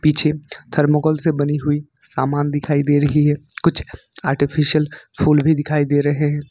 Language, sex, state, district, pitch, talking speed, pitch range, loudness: Hindi, male, Jharkhand, Ranchi, 150 Hz, 155 wpm, 145-150 Hz, -18 LUFS